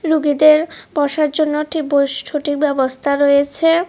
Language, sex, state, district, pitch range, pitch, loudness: Bengali, female, Tripura, West Tripura, 285-310 Hz, 295 Hz, -16 LUFS